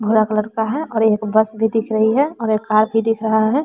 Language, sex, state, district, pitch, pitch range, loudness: Hindi, female, Bihar, West Champaran, 220 Hz, 215-225 Hz, -17 LUFS